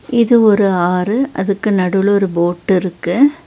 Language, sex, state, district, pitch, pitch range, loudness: Tamil, female, Tamil Nadu, Nilgiris, 200 Hz, 180-235 Hz, -14 LUFS